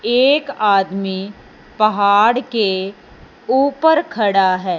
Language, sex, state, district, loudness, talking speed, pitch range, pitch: Hindi, male, Punjab, Fazilka, -16 LUFS, 90 wpm, 195-255 Hz, 210 Hz